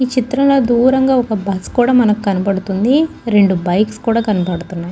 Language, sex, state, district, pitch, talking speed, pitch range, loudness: Telugu, female, Andhra Pradesh, Guntur, 220 Hz, 170 wpm, 195-255 Hz, -14 LUFS